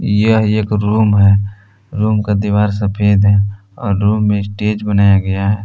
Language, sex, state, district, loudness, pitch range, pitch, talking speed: Hindi, male, Jharkhand, Palamu, -14 LUFS, 100-105 Hz, 105 Hz, 170 wpm